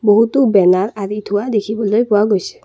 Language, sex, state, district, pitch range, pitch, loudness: Assamese, female, Assam, Kamrup Metropolitan, 205-220 Hz, 210 Hz, -15 LUFS